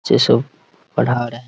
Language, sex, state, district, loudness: Hindi, male, Bihar, Araria, -17 LUFS